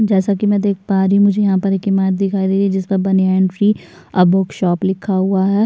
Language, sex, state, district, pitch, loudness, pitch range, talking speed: Hindi, female, Uttarakhand, Tehri Garhwal, 195 Hz, -15 LUFS, 190-200 Hz, 275 wpm